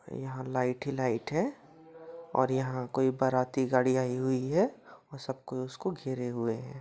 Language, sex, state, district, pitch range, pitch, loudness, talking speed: Hindi, male, Jharkhand, Sahebganj, 130-140 Hz, 130 Hz, -31 LUFS, 175 wpm